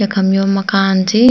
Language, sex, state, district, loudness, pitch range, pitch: Garhwali, female, Uttarakhand, Tehri Garhwal, -13 LUFS, 195-205 Hz, 195 Hz